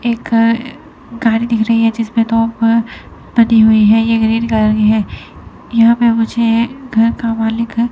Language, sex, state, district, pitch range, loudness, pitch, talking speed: Hindi, female, Chandigarh, Chandigarh, 225-235 Hz, -13 LUFS, 230 Hz, 180 wpm